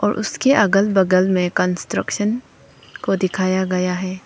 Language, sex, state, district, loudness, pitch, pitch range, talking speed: Hindi, female, Arunachal Pradesh, Papum Pare, -18 LUFS, 190 Hz, 185-205 Hz, 125 wpm